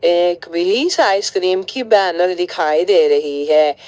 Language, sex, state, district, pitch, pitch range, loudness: Hindi, female, Jharkhand, Ranchi, 190 Hz, 175-265 Hz, -15 LUFS